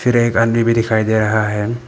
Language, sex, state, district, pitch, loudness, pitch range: Hindi, male, Arunachal Pradesh, Papum Pare, 115 Hz, -15 LUFS, 110-115 Hz